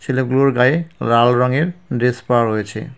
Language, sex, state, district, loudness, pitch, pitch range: Bengali, male, West Bengal, Cooch Behar, -17 LUFS, 125 Hz, 120-140 Hz